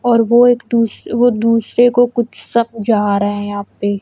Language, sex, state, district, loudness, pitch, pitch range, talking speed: Hindi, female, Punjab, Kapurthala, -14 LUFS, 230 Hz, 205-240 Hz, 195 wpm